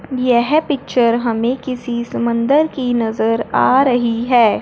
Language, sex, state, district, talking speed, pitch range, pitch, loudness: Hindi, male, Punjab, Fazilka, 130 wpm, 235-260 Hz, 245 Hz, -16 LUFS